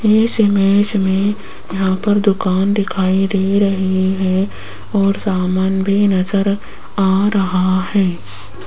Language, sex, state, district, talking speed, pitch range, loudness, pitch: Hindi, female, Rajasthan, Jaipur, 120 wpm, 190-200 Hz, -16 LUFS, 195 Hz